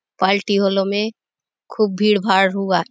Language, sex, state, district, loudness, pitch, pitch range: Halbi, female, Chhattisgarh, Bastar, -18 LUFS, 195 Hz, 195-210 Hz